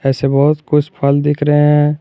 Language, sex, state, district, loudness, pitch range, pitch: Hindi, male, Jharkhand, Garhwa, -13 LUFS, 140-150 Hz, 145 Hz